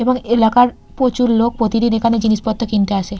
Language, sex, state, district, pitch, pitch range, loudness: Bengali, female, West Bengal, Purulia, 230 Hz, 220-240 Hz, -15 LUFS